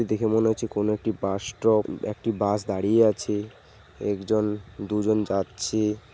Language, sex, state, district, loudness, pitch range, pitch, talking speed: Bengali, male, West Bengal, Paschim Medinipur, -25 LUFS, 105-110 Hz, 105 Hz, 145 wpm